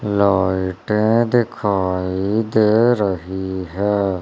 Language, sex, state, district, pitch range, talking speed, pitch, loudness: Hindi, male, Madhya Pradesh, Umaria, 95-110 Hz, 70 wpm, 100 Hz, -18 LUFS